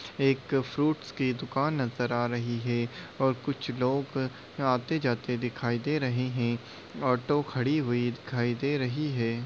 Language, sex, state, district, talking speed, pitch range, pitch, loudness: Hindi, male, Uttar Pradesh, Deoria, 150 wpm, 120-135 Hz, 125 Hz, -30 LUFS